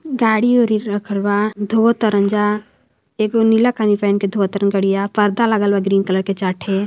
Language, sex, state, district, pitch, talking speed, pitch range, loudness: Hindi, female, Uttar Pradesh, Varanasi, 205 Hz, 200 wpm, 200-220 Hz, -17 LUFS